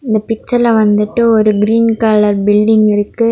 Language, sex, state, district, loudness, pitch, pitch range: Tamil, female, Tamil Nadu, Nilgiris, -11 LUFS, 220 Hz, 210-230 Hz